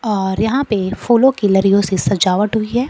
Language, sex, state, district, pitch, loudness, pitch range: Hindi, female, Bihar, Kaimur, 205 Hz, -15 LUFS, 195-235 Hz